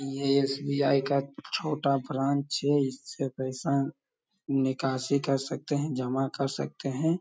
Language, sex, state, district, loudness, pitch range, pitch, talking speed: Hindi, male, Uttar Pradesh, Hamirpur, -29 LUFS, 135-140 Hz, 140 Hz, 135 wpm